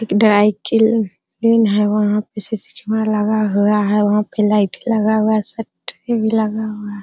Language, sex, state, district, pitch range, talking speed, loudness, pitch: Hindi, female, Bihar, Araria, 210-220 Hz, 170 wpm, -17 LUFS, 215 Hz